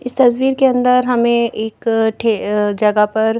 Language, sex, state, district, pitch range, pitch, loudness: Hindi, female, Madhya Pradesh, Bhopal, 220-250 Hz, 230 Hz, -15 LUFS